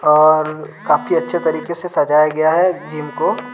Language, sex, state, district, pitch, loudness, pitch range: Hindi, male, Jharkhand, Deoghar, 155 Hz, -16 LUFS, 155-170 Hz